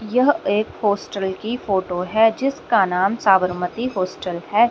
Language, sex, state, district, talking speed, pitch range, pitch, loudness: Hindi, female, Haryana, Rohtak, 140 wpm, 185-230 Hz, 205 Hz, -20 LUFS